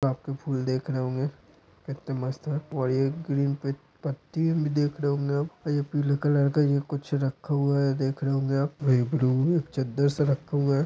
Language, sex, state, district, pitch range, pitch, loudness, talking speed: Hindi, male, Bihar, Saharsa, 135-145 Hz, 140 Hz, -27 LUFS, 200 wpm